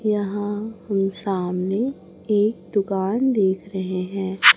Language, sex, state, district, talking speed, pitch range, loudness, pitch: Hindi, male, Chhattisgarh, Raipur, 105 wpm, 190-210 Hz, -23 LUFS, 200 Hz